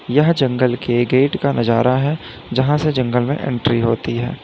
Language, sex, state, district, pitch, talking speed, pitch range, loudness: Hindi, male, Uttar Pradesh, Lalitpur, 125 Hz, 190 wpm, 120-140 Hz, -17 LUFS